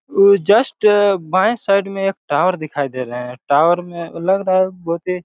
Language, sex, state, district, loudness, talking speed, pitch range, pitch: Hindi, male, Chhattisgarh, Raigarh, -16 LUFS, 205 wpm, 165-195 Hz, 185 Hz